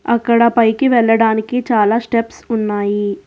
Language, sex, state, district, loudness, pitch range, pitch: Telugu, female, Telangana, Hyderabad, -15 LUFS, 220-235 Hz, 230 Hz